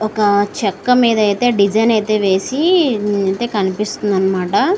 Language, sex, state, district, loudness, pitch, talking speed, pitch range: Telugu, female, Andhra Pradesh, Srikakulam, -15 LUFS, 210 Hz, 100 wpm, 200-240 Hz